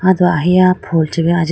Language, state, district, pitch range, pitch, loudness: Idu Mishmi, Arunachal Pradesh, Lower Dibang Valley, 165-185 Hz, 175 Hz, -13 LUFS